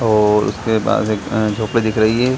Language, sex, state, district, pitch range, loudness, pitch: Hindi, male, Bihar, Saran, 105-110 Hz, -17 LUFS, 110 Hz